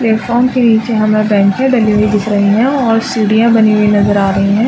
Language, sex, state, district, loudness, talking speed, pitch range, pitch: Hindi, female, Chhattisgarh, Raigarh, -11 LUFS, 245 wpm, 210-235 Hz, 215 Hz